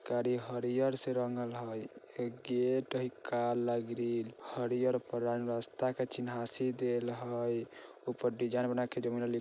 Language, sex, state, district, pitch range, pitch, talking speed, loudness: Bajjika, male, Bihar, Vaishali, 120-125 Hz, 120 Hz, 140 wpm, -36 LUFS